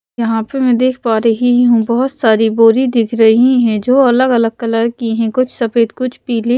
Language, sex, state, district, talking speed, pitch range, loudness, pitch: Hindi, female, Punjab, Pathankot, 210 wpm, 225-250 Hz, -13 LUFS, 235 Hz